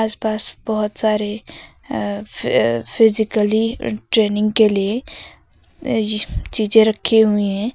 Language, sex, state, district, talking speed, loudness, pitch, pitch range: Hindi, female, Uttar Pradesh, Lucknow, 110 wpm, -18 LUFS, 215 Hz, 210-220 Hz